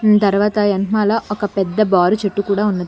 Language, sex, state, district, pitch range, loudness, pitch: Telugu, female, Telangana, Hyderabad, 200-210 Hz, -16 LUFS, 205 Hz